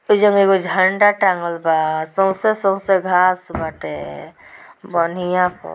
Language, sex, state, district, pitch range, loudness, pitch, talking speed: Bhojpuri, female, Bihar, Gopalganj, 170-195 Hz, -17 LUFS, 185 Hz, 115 wpm